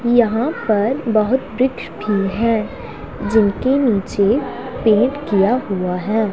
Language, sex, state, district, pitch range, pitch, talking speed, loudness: Hindi, female, Punjab, Pathankot, 205-255 Hz, 220 Hz, 115 wpm, -18 LUFS